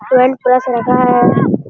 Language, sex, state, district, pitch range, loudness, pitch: Hindi, male, Bihar, Jamui, 245-255 Hz, -12 LUFS, 250 Hz